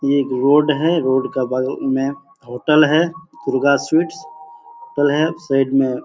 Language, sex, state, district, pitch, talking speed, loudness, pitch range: Hindi, male, Bihar, Begusarai, 140 Hz, 150 wpm, -17 LUFS, 135-155 Hz